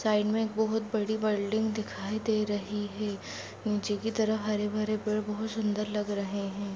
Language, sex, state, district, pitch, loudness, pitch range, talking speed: Hindi, female, Rajasthan, Nagaur, 210 Hz, -31 LUFS, 205-220 Hz, 180 wpm